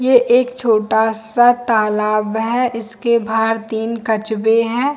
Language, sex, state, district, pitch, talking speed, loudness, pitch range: Hindi, female, Jharkhand, Jamtara, 225 Hz, 130 wpm, -16 LUFS, 220-240 Hz